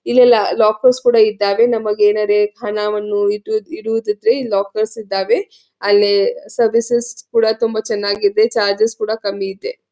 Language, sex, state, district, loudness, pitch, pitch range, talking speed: Kannada, female, Karnataka, Belgaum, -16 LUFS, 220 Hz, 210-250 Hz, 120 wpm